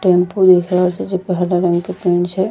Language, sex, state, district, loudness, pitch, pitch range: Angika, female, Bihar, Bhagalpur, -15 LUFS, 180 Hz, 180-185 Hz